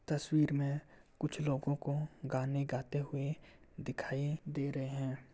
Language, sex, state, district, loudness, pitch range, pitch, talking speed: Hindi, male, Uttar Pradesh, Varanasi, -38 LUFS, 135-150 Hz, 140 Hz, 135 wpm